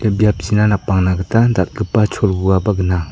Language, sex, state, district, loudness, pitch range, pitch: Garo, male, Meghalaya, South Garo Hills, -16 LUFS, 95-105 Hz, 100 Hz